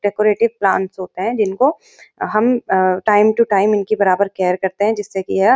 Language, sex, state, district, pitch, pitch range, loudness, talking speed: Hindi, female, Uttarakhand, Uttarkashi, 205 Hz, 190-215 Hz, -16 LUFS, 215 wpm